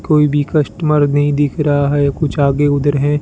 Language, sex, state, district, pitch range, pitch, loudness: Hindi, male, Rajasthan, Bikaner, 145-150 Hz, 145 Hz, -14 LUFS